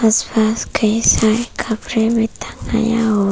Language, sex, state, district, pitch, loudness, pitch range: Hindi, female, Arunachal Pradesh, Papum Pare, 225 Hz, -16 LUFS, 220-230 Hz